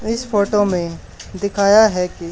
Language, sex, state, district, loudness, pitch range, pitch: Hindi, male, Haryana, Charkhi Dadri, -16 LUFS, 180-210 Hz, 200 Hz